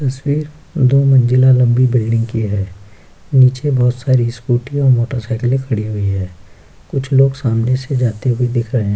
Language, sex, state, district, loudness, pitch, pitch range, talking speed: Hindi, male, Bihar, Kishanganj, -15 LUFS, 125 Hz, 110-130 Hz, 165 wpm